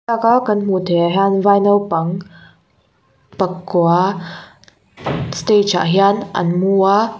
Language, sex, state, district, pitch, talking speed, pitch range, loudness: Mizo, female, Mizoram, Aizawl, 185 Hz, 135 wpm, 170-200 Hz, -15 LUFS